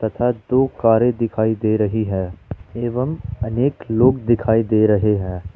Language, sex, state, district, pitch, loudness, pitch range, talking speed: Hindi, male, Jharkhand, Ranchi, 110 Hz, -19 LUFS, 110-120 Hz, 140 wpm